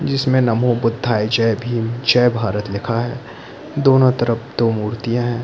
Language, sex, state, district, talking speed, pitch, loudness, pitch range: Hindi, male, Chhattisgarh, Bilaspur, 155 wpm, 120 Hz, -18 LUFS, 115-125 Hz